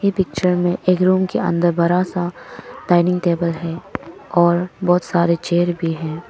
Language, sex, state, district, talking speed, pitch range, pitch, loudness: Hindi, female, Arunachal Pradesh, Papum Pare, 170 wpm, 170-180 Hz, 175 Hz, -18 LUFS